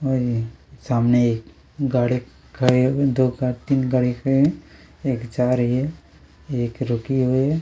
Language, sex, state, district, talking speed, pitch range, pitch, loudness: Hindi, male, Chhattisgarh, Kabirdham, 180 wpm, 120-135 Hz, 125 Hz, -21 LUFS